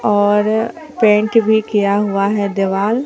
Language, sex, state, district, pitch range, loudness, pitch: Hindi, female, Bihar, Katihar, 200-220 Hz, -15 LUFS, 210 Hz